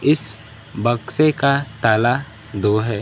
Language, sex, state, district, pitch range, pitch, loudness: Hindi, male, Bihar, Kaimur, 110-140 Hz, 115 Hz, -19 LUFS